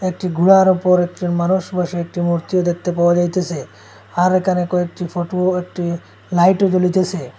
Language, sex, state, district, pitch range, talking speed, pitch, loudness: Bengali, male, Assam, Hailakandi, 175-185 Hz, 155 wpm, 180 Hz, -17 LUFS